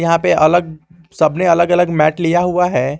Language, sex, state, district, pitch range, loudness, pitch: Hindi, male, Jharkhand, Garhwa, 155-175 Hz, -14 LUFS, 170 Hz